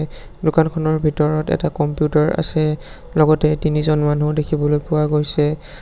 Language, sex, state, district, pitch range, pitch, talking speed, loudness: Assamese, male, Assam, Sonitpur, 150-155 Hz, 155 Hz, 125 wpm, -18 LUFS